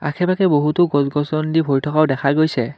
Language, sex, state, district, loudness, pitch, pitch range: Assamese, male, Assam, Kamrup Metropolitan, -17 LUFS, 150 Hz, 140-160 Hz